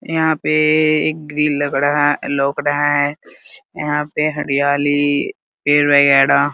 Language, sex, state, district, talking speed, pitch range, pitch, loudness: Hindi, male, Bihar, Muzaffarpur, 145 wpm, 145-150 Hz, 145 Hz, -16 LUFS